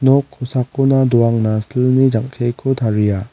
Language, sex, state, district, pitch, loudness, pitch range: Garo, male, Meghalaya, West Garo Hills, 125 Hz, -16 LUFS, 115-135 Hz